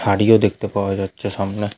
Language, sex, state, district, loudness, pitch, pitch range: Bengali, male, West Bengal, Jhargram, -19 LUFS, 100 Hz, 100-105 Hz